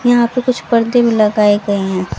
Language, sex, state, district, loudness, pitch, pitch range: Hindi, female, Haryana, Rohtak, -13 LUFS, 230 Hz, 205-245 Hz